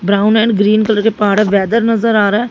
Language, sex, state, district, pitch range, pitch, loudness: Hindi, female, Haryana, Jhajjar, 205-225 Hz, 210 Hz, -12 LUFS